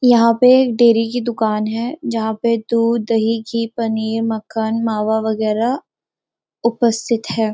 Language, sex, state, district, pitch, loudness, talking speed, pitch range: Hindi, female, Uttarakhand, Uttarkashi, 230 Hz, -17 LUFS, 145 wpm, 220-235 Hz